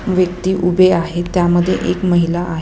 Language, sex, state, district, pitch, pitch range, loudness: Marathi, female, Maharashtra, Chandrapur, 180 Hz, 175-185 Hz, -15 LUFS